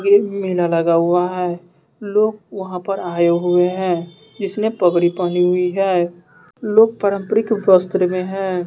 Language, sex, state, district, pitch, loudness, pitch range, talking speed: Hindi, male, Bihar, West Champaran, 180 Hz, -17 LUFS, 175-200 Hz, 145 wpm